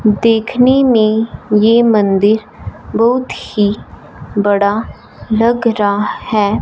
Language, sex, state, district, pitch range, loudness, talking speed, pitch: Hindi, male, Punjab, Fazilka, 205-230 Hz, -13 LUFS, 90 wpm, 220 Hz